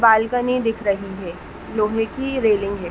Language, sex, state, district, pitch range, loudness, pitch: Hindi, female, Uttar Pradesh, Etah, 200-230 Hz, -21 LUFS, 220 Hz